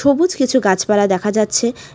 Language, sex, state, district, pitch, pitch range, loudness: Bengali, female, West Bengal, Alipurduar, 225 Hz, 205-265 Hz, -16 LUFS